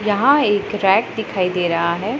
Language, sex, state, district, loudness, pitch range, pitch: Hindi, female, Punjab, Pathankot, -17 LUFS, 180-215 Hz, 205 Hz